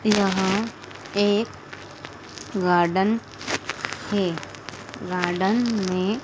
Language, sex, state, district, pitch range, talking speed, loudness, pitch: Hindi, female, Madhya Pradesh, Dhar, 180-210 Hz, 60 wpm, -24 LUFS, 190 Hz